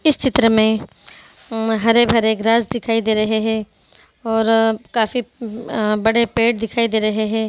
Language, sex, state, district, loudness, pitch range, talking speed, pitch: Hindi, female, Bihar, Araria, -17 LUFS, 220-230 Hz, 150 wpm, 225 Hz